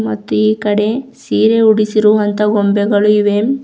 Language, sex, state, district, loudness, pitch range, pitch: Kannada, female, Karnataka, Bidar, -13 LUFS, 205-215 Hz, 210 Hz